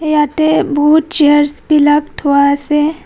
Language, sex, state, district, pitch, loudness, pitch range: Assamese, female, Assam, Kamrup Metropolitan, 295 Hz, -12 LUFS, 290-310 Hz